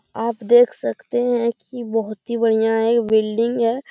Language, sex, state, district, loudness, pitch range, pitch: Hindi, female, Bihar, Saran, -19 LUFS, 220-240 Hz, 230 Hz